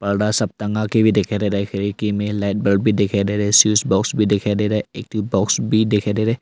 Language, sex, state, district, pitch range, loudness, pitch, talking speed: Hindi, male, Arunachal Pradesh, Longding, 100-110 Hz, -18 LUFS, 105 Hz, 280 wpm